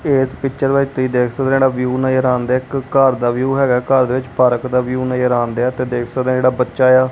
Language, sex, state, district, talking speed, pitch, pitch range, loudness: Punjabi, male, Punjab, Kapurthala, 285 wpm, 130 Hz, 125-130 Hz, -16 LUFS